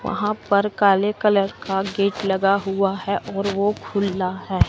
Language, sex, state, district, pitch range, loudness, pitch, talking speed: Hindi, male, Chandigarh, Chandigarh, 195-200 Hz, -21 LUFS, 200 Hz, 165 wpm